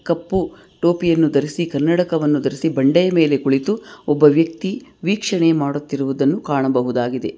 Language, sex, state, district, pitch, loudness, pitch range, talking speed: Kannada, female, Karnataka, Bangalore, 160 Hz, -18 LUFS, 140-175 Hz, 105 wpm